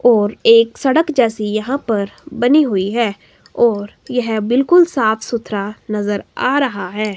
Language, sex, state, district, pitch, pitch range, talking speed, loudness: Hindi, female, Himachal Pradesh, Shimla, 230 Hz, 210-255 Hz, 150 wpm, -16 LUFS